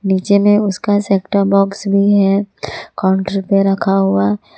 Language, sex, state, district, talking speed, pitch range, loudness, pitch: Hindi, female, Jharkhand, Ranchi, 155 wpm, 195-200 Hz, -14 LUFS, 195 Hz